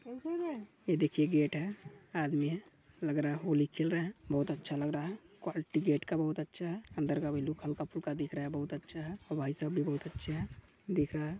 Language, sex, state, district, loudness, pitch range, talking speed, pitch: Hindi, male, Chhattisgarh, Balrampur, -36 LUFS, 150-170 Hz, 235 wpm, 155 Hz